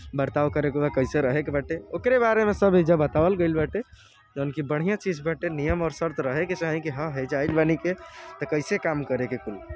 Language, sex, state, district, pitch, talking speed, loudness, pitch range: Bhojpuri, male, Uttar Pradesh, Deoria, 155 Hz, 240 wpm, -25 LUFS, 145-170 Hz